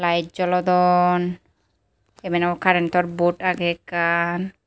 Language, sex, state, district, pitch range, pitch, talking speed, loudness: Chakma, female, Tripura, Unakoti, 170-180 Hz, 175 Hz, 105 wpm, -20 LUFS